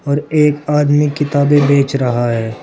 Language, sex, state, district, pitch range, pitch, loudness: Hindi, male, Uttar Pradesh, Saharanpur, 135-150 Hz, 145 Hz, -14 LUFS